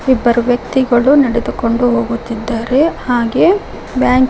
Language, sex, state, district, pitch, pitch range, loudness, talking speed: Kannada, female, Karnataka, Koppal, 245 Hz, 235-260 Hz, -14 LUFS, 85 wpm